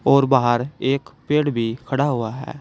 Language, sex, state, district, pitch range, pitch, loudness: Hindi, male, Uttar Pradesh, Saharanpur, 120-145 Hz, 135 Hz, -20 LUFS